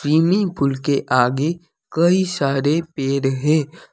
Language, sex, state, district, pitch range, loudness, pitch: Hindi, male, Jharkhand, Deoghar, 140-170 Hz, -19 LUFS, 155 Hz